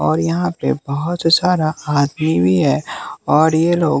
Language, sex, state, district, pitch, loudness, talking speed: Hindi, male, Bihar, West Champaran, 155 Hz, -16 LUFS, 165 wpm